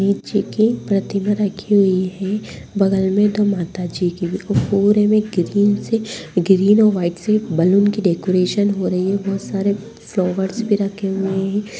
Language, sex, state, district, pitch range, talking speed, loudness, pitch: Hindi, female, Bihar, Madhepura, 185-205 Hz, 170 wpm, -18 LUFS, 200 Hz